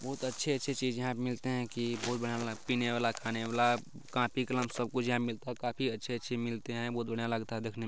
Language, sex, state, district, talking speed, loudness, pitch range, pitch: Maithili, male, Bihar, Kishanganj, 230 wpm, -34 LUFS, 115-125 Hz, 120 Hz